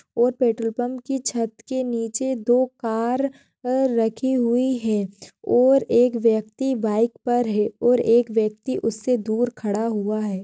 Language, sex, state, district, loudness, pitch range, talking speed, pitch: Hindi, female, Maharashtra, Chandrapur, -22 LUFS, 225-255 Hz, 155 wpm, 235 Hz